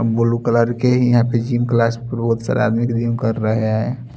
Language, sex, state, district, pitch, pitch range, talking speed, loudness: Hindi, male, Chhattisgarh, Raipur, 115 Hz, 115-120 Hz, 245 wpm, -18 LUFS